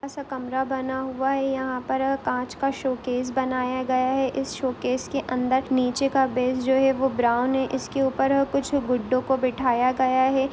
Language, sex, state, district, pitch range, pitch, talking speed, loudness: Hindi, female, Jharkhand, Sahebganj, 255-270 Hz, 265 Hz, 200 wpm, -24 LUFS